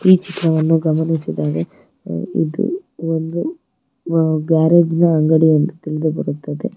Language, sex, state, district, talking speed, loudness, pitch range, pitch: Kannada, female, Karnataka, Bangalore, 90 wpm, -17 LUFS, 155-170 Hz, 160 Hz